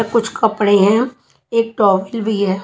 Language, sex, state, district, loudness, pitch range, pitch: Hindi, female, Chhattisgarh, Raipur, -16 LUFS, 200-230 Hz, 220 Hz